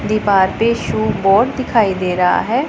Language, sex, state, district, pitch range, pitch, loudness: Hindi, female, Punjab, Pathankot, 185-235 Hz, 200 Hz, -15 LUFS